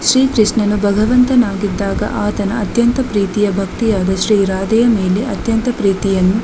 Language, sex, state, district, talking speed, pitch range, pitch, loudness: Kannada, female, Karnataka, Dakshina Kannada, 110 wpm, 195-230 Hz, 210 Hz, -15 LUFS